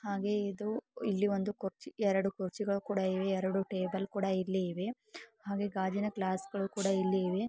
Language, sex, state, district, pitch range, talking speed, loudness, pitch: Kannada, female, Karnataka, Belgaum, 190-205 Hz, 135 wpm, -34 LUFS, 195 Hz